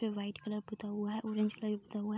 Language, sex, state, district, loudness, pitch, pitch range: Hindi, female, Bihar, Darbhanga, -38 LUFS, 210 Hz, 210-215 Hz